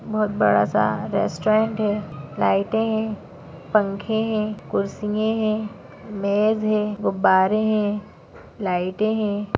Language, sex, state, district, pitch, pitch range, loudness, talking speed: Hindi, female, Maharashtra, Nagpur, 210 Hz, 200-215 Hz, -22 LUFS, 105 wpm